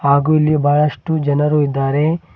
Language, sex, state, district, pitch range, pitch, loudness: Kannada, male, Karnataka, Bidar, 145-155 Hz, 150 Hz, -15 LUFS